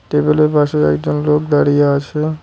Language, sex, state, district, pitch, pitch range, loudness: Bengali, male, West Bengal, Cooch Behar, 150 Hz, 145-150 Hz, -14 LUFS